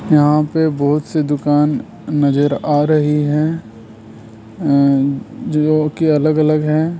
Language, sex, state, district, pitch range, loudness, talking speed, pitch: Hindi, male, Rajasthan, Jaipur, 140-155 Hz, -15 LUFS, 120 wpm, 150 Hz